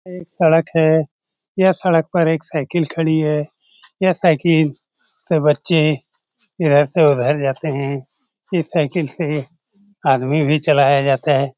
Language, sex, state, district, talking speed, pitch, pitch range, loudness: Hindi, male, Bihar, Lakhisarai, 140 wpm, 160 Hz, 145-170 Hz, -17 LUFS